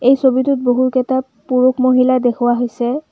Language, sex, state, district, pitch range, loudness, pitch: Assamese, female, Assam, Kamrup Metropolitan, 245-260 Hz, -15 LUFS, 255 Hz